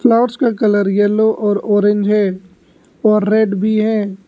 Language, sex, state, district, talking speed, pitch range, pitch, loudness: Hindi, male, Arunachal Pradesh, Lower Dibang Valley, 155 wpm, 205-220 Hz, 210 Hz, -14 LUFS